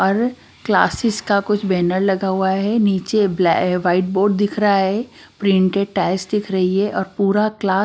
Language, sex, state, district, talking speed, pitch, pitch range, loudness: Hindi, female, Maharashtra, Washim, 185 wpm, 195 Hz, 190-210 Hz, -18 LUFS